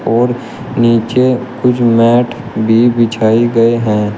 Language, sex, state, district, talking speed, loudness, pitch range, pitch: Hindi, male, Uttar Pradesh, Shamli, 115 wpm, -12 LUFS, 115-120 Hz, 120 Hz